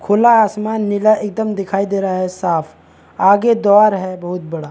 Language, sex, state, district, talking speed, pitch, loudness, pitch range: Hindi, male, Chhattisgarh, Bastar, 190 wpm, 200 Hz, -15 LUFS, 185-215 Hz